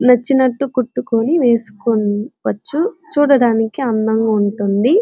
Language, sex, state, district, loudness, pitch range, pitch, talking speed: Telugu, female, Andhra Pradesh, Chittoor, -16 LUFS, 220-275 Hz, 235 Hz, 70 wpm